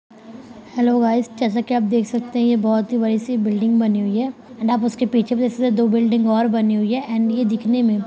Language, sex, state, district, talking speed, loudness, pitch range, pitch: Hindi, female, Bihar, Kishanganj, 265 wpm, -19 LUFS, 225-240 Hz, 230 Hz